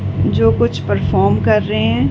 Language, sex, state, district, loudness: Hindi, female, Uttar Pradesh, Varanasi, -15 LUFS